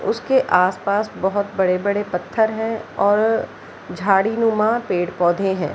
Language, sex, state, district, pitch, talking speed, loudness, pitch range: Hindi, female, Bihar, Jahanabad, 200 Hz, 115 wpm, -19 LUFS, 185-220 Hz